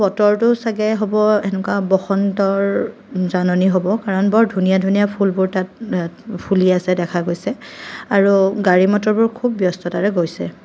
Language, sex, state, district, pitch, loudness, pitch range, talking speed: Assamese, female, Assam, Kamrup Metropolitan, 195 Hz, -17 LUFS, 185-210 Hz, 135 wpm